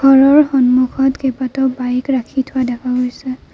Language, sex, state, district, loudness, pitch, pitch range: Assamese, female, Assam, Kamrup Metropolitan, -15 LUFS, 260 Hz, 250-270 Hz